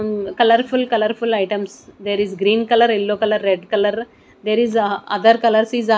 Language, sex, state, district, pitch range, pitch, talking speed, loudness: English, female, Odisha, Nuapada, 205-230 Hz, 215 Hz, 200 wpm, -17 LUFS